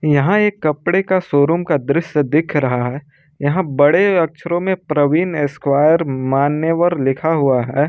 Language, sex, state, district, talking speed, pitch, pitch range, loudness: Hindi, male, Jharkhand, Ranchi, 150 wpm, 150 Hz, 140-170 Hz, -16 LUFS